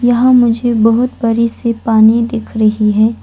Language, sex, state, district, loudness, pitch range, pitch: Hindi, female, Arunachal Pradesh, Longding, -12 LUFS, 220-240 Hz, 230 Hz